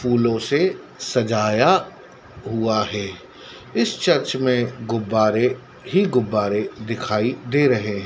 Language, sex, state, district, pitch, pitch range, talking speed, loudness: Hindi, male, Madhya Pradesh, Dhar, 115 Hz, 110-130 Hz, 105 wpm, -20 LUFS